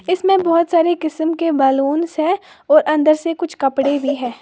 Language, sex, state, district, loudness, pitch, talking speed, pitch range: Hindi, female, Uttar Pradesh, Lalitpur, -16 LUFS, 320 Hz, 190 wpm, 285-340 Hz